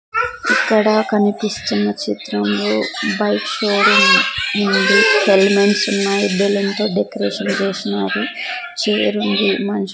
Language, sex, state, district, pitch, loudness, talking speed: Telugu, female, Andhra Pradesh, Sri Satya Sai, 200 Hz, -16 LUFS, 70 wpm